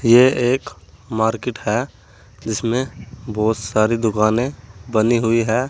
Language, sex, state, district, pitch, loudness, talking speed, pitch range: Hindi, male, Uttar Pradesh, Saharanpur, 110 Hz, -19 LUFS, 115 wpm, 110-120 Hz